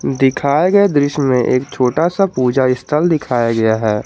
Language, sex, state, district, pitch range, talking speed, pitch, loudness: Hindi, male, Jharkhand, Garhwa, 125-150 Hz, 180 wpm, 135 Hz, -15 LUFS